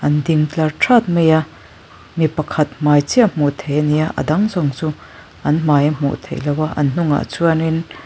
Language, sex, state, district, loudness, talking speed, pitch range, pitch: Mizo, female, Mizoram, Aizawl, -17 LUFS, 200 wpm, 145-160 Hz, 155 Hz